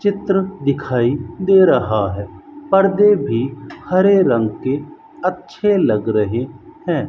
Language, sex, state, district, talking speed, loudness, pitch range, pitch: Hindi, female, Rajasthan, Bikaner, 120 wpm, -17 LUFS, 120-195 Hz, 145 Hz